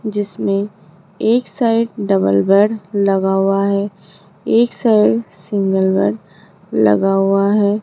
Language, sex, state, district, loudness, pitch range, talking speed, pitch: Hindi, female, Rajasthan, Jaipur, -16 LUFS, 195-210 Hz, 115 wpm, 200 Hz